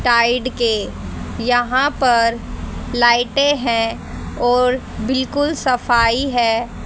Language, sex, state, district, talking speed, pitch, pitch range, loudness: Hindi, female, Haryana, Rohtak, 85 wpm, 245 Hz, 235-260 Hz, -17 LUFS